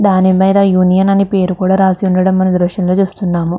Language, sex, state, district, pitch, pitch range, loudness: Telugu, female, Andhra Pradesh, Chittoor, 185 Hz, 185-195 Hz, -12 LUFS